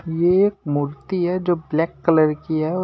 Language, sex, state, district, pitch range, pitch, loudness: Hindi, male, Delhi, New Delhi, 155-180 Hz, 165 Hz, -20 LUFS